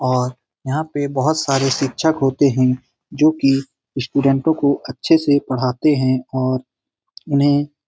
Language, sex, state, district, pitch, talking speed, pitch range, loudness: Hindi, male, Bihar, Lakhisarai, 135 Hz, 145 wpm, 130-145 Hz, -18 LUFS